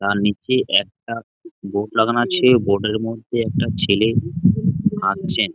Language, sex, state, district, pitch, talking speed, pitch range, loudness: Bengali, male, West Bengal, Malda, 115 Hz, 140 wpm, 105-125 Hz, -19 LUFS